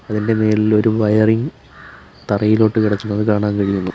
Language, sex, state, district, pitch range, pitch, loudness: Malayalam, male, Kerala, Kollam, 105-110 Hz, 105 Hz, -16 LUFS